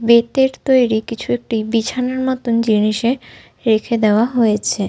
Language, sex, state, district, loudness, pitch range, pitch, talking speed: Bengali, female, Jharkhand, Sahebganj, -17 LUFS, 220-250 Hz, 230 Hz, 120 wpm